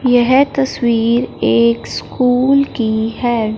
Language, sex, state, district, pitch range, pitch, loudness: Hindi, female, Punjab, Fazilka, 220-255 Hz, 240 Hz, -14 LUFS